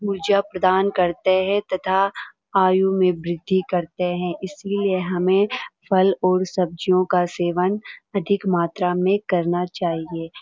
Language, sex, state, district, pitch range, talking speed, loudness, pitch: Hindi, female, Uttarakhand, Uttarkashi, 180-195 Hz, 130 wpm, -21 LUFS, 185 Hz